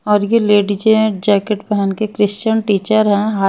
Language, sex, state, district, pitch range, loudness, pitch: Hindi, female, Chhattisgarh, Raipur, 200-215 Hz, -15 LUFS, 210 Hz